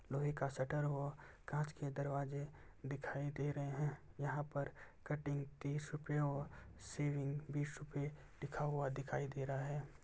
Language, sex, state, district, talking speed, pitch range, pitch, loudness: Hindi, male, Bihar, Begusarai, 155 wpm, 140-145 Hz, 145 Hz, -43 LUFS